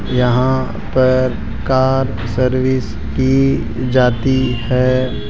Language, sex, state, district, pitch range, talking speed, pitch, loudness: Hindi, male, Rajasthan, Jaipur, 125-130 Hz, 80 wpm, 130 Hz, -16 LUFS